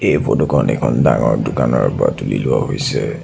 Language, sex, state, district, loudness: Assamese, male, Assam, Sonitpur, -16 LUFS